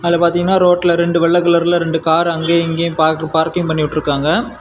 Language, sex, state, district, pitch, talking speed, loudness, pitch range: Tamil, male, Tamil Nadu, Kanyakumari, 170 Hz, 170 wpm, -14 LUFS, 160-175 Hz